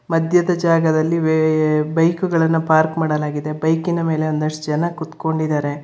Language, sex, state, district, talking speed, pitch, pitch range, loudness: Kannada, female, Karnataka, Bangalore, 115 wpm, 160 Hz, 155-165 Hz, -18 LUFS